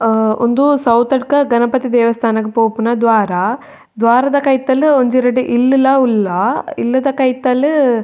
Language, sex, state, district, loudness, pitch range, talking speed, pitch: Tulu, female, Karnataka, Dakshina Kannada, -13 LUFS, 230-270 Hz, 120 wpm, 250 Hz